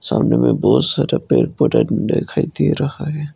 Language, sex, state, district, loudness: Hindi, male, Arunachal Pradesh, Lower Dibang Valley, -16 LUFS